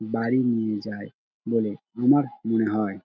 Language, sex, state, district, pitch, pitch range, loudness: Bengali, male, West Bengal, Dakshin Dinajpur, 110 Hz, 105-120 Hz, -25 LUFS